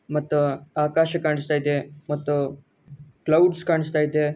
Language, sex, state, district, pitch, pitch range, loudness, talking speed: Kannada, male, Karnataka, Gulbarga, 150 Hz, 145-155 Hz, -23 LUFS, 110 wpm